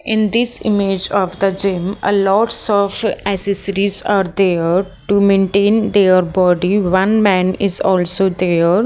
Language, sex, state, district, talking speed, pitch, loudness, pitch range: English, female, Haryana, Jhajjar, 140 wpm, 195 Hz, -15 LUFS, 185-205 Hz